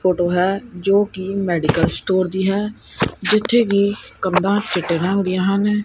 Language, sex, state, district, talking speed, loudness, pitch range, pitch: Punjabi, male, Punjab, Kapurthala, 155 wpm, -18 LUFS, 185-205 Hz, 195 Hz